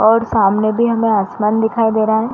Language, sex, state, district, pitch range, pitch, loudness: Hindi, female, Uttar Pradesh, Varanasi, 215-230 Hz, 220 Hz, -15 LUFS